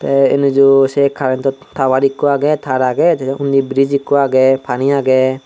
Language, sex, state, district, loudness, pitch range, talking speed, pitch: Chakma, male, Tripura, Dhalai, -13 LUFS, 130-140 Hz, 175 wpm, 135 Hz